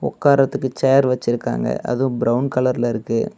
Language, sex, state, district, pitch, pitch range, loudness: Tamil, male, Tamil Nadu, Namakkal, 125 Hz, 120-135 Hz, -19 LUFS